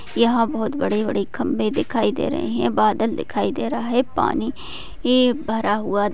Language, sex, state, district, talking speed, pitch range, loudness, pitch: Hindi, female, Maharashtra, Pune, 175 wpm, 215-250 Hz, -21 LUFS, 235 Hz